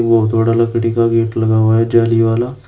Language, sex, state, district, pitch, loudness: Hindi, male, Uttar Pradesh, Shamli, 115 Hz, -14 LUFS